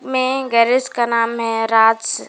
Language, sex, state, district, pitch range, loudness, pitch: Hindi, female, Jharkhand, Garhwa, 225-255 Hz, -16 LUFS, 235 Hz